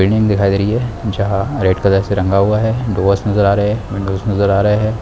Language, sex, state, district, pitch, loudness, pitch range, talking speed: Hindi, male, Chhattisgarh, Balrampur, 100 Hz, -15 LUFS, 100-110 Hz, 260 wpm